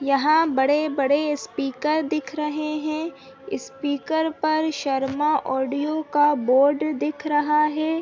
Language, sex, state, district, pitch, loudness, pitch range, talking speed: Hindi, female, Uttarakhand, Tehri Garhwal, 300 Hz, -22 LUFS, 275-310 Hz, 110 wpm